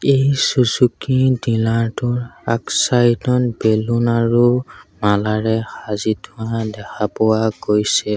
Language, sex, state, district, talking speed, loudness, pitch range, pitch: Assamese, male, Assam, Sonitpur, 105 wpm, -17 LUFS, 110-120 Hz, 115 Hz